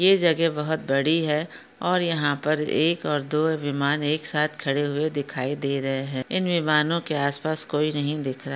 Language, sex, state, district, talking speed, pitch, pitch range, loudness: Hindi, female, Maharashtra, Pune, 205 wpm, 150 Hz, 140-160 Hz, -23 LUFS